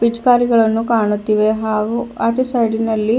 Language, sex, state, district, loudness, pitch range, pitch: Kannada, female, Karnataka, Bidar, -16 LUFS, 220-235 Hz, 225 Hz